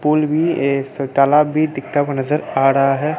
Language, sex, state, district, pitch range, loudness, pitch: Hindi, male, Bihar, Katihar, 135-150 Hz, -17 LUFS, 145 Hz